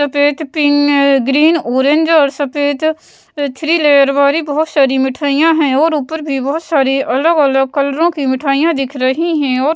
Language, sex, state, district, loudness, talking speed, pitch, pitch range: Hindi, female, Bihar, West Champaran, -13 LUFS, 170 wpm, 285 Hz, 275-315 Hz